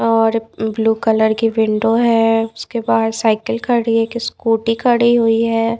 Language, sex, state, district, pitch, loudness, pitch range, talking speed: Hindi, female, Odisha, Nuapada, 225 Hz, -16 LUFS, 225-230 Hz, 165 wpm